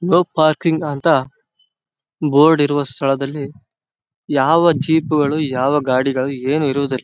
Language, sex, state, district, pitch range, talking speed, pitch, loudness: Kannada, male, Karnataka, Bellary, 135-155 Hz, 110 wpm, 145 Hz, -16 LUFS